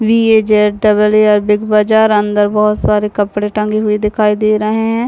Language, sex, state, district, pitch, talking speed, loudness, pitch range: Hindi, female, Chhattisgarh, Raigarh, 210 Hz, 210 wpm, -12 LUFS, 210-215 Hz